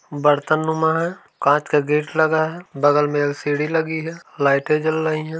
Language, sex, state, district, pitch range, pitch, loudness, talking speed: Hindi, male, Uttar Pradesh, Varanasi, 145-160 Hz, 155 Hz, -19 LUFS, 190 wpm